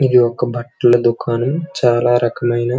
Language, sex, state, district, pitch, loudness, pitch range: Telugu, male, Andhra Pradesh, Srikakulam, 120 Hz, -16 LUFS, 120-125 Hz